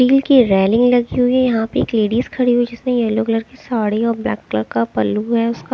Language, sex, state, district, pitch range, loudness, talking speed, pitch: Hindi, female, Chandigarh, Chandigarh, 220-250 Hz, -16 LUFS, 270 wpm, 235 Hz